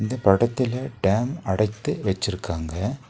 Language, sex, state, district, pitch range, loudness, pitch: Tamil, male, Tamil Nadu, Nilgiris, 95-125 Hz, -24 LUFS, 110 Hz